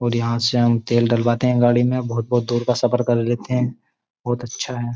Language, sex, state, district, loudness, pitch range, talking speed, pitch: Hindi, male, Uttar Pradesh, Jyotiba Phule Nagar, -20 LUFS, 120-125 Hz, 230 wpm, 120 Hz